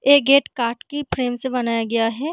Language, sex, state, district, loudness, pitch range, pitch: Hindi, female, Bihar, Gaya, -20 LUFS, 235-280 Hz, 250 Hz